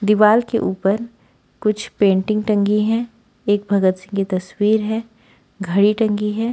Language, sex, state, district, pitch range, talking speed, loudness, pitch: Hindi, female, Haryana, Rohtak, 200-225 Hz, 145 wpm, -18 LUFS, 210 Hz